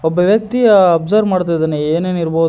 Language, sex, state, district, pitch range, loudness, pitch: Kannada, male, Karnataka, Koppal, 165-205 Hz, -13 LUFS, 175 Hz